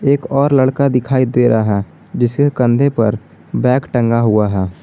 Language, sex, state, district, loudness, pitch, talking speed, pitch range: Hindi, male, Jharkhand, Garhwa, -14 LUFS, 125 Hz, 175 wpm, 110-135 Hz